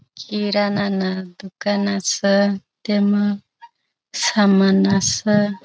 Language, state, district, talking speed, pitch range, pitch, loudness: Bhili, Maharashtra, Dhule, 85 wpm, 195-205 Hz, 200 Hz, -19 LUFS